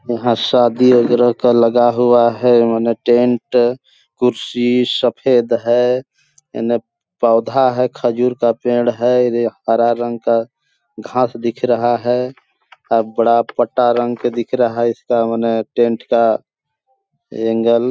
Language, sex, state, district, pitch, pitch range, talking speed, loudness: Hindi, male, Chhattisgarh, Balrampur, 120 Hz, 115-125 Hz, 125 wpm, -15 LUFS